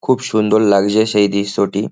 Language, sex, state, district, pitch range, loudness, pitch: Bengali, male, West Bengal, Jhargram, 100-110 Hz, -15 LUFS, 105 Hz